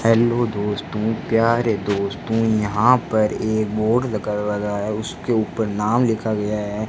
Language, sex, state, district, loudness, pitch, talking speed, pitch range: Hindi, male, Rajasthan, Bikaner, -20 LUFS, 110 Hz, 140 wpm, 105-115 Hz